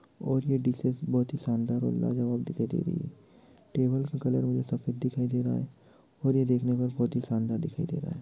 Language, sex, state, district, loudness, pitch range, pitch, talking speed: Hindi, male, Bihar, Jamui, -30 LUFS, 115-135 Hz, 125 Hz, 210 wpm